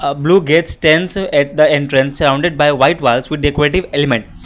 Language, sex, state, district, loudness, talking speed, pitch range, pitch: English, male, Assam, Kamrup Metropolitan, -13 LUFS, 160 wpm, 140-160 Hz, 145 Hz